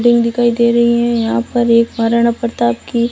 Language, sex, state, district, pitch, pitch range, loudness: Hindi, female, Rajasthan, Barmer, 235 Hz, 230-235 Hz, -14 LUFS